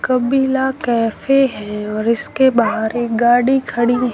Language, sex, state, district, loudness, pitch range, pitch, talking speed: Hindi, female, Rajasthan, Jaisalmer, -16 LUFS, 225-265 Hz, 240 Hz, 130 wpm